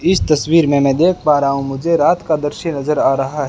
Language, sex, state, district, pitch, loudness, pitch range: Hindi, male, Rajasthan, Bikaner, 150 Hz, -15 LUFS, 140-165 Hz